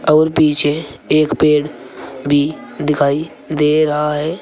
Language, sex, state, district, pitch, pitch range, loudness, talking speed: Hindi, male, Uttar Pradesh, Saharanpur, 150 Hz, 145-155 Hz, -15 LUFS, 120 wpm